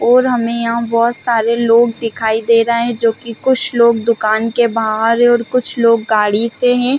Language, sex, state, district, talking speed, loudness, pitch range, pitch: Hindi, female, Chhattisgarh, Bilaspur, 205 wpm, -14 LUFS, 230-240 Hz, 235 Hz